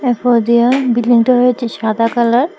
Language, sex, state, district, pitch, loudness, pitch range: Bengali, female, Tripura, West Tripura, 240 Hz, -13 LUFS, 235-250 Hz